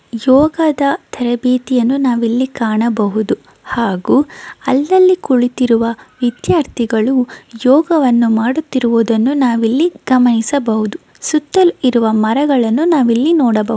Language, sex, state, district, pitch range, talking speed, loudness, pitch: Kannada, female, Karnataka, Belgaum, 230-280 Hz, 75 wpm, -14 LUFS, 250 Hz